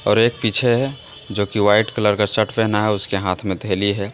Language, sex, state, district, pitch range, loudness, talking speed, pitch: Hindi, male, Jharkhand, Deoghar, 100-110 Hz, -19 LUFS, 230 wpm, 105 Hz